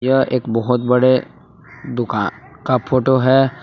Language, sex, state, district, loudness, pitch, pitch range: Hindi, male, Jharkhand, Palamu, -17 LUFS, 130 Hz, 125-135 Hz